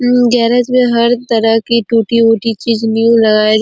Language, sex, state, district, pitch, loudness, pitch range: Hindi, female, Chhattisgarh, Korba, 230 Hz, -11 LUFS, 225-240 Hz